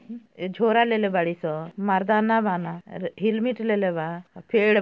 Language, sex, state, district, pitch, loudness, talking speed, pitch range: Bhojpuri, female, Uttar Pradesh, Ghazipur, 205 Hz, -24 LUFS, 135 wpm, 175-225 Hz